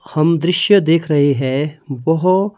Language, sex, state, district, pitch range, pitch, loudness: Hindi, male, Himachal Pradesh, Shimla, 145-180 Hz, 160 Hz, -15 LUFS